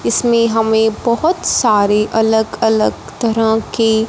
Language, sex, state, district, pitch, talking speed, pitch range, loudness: Hindi, female, Punjab, Fazilka, 220 Hz, 115 wpm, 220-230 Hz, -14 LUFS